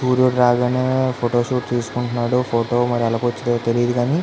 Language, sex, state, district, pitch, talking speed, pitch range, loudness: Telugu, male, Andhra Pradesh, Visakhapatnam, 120 Hz, 170 wpm, 120-125 Hz, -19 LUFS